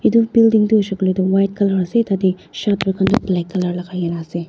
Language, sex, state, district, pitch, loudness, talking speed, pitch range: Nagamese, female, Nagaland, Dimapur, 190 Hz, -17 LUFS, 225 wpm, 185-210 Hz